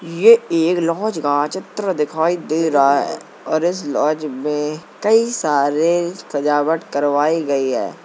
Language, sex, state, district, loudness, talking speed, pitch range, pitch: Hindi, male, Uttar Pradesh, Jalaun, -18 LUFS, 140 wpm, 145-175 Hz, 160 Hz